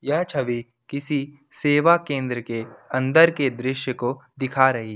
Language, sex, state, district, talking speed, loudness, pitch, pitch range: Hindi, male, Jharkhand, Ranchi, 145 wpm, -22 LUFS, 130 Hz, 120-145 Hz